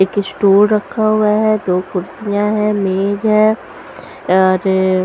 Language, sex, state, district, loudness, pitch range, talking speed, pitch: Hindi, female, Punjab, Pathankot, -14 LUFS, 190-215 Hz, 140 wpm, 205 Hz